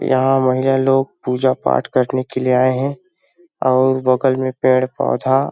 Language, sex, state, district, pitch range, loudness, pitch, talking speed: Hindi, male, Chhattisgarh, Balrampur, 130-135 Hz, -17 LUFS, 130 Hz, 150 wpm